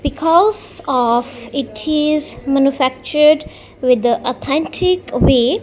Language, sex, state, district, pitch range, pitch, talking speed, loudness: English, female, Punjab, Kapurthala, 255-310 Hz, 285 Hz, 95 wpm, -16 LUFS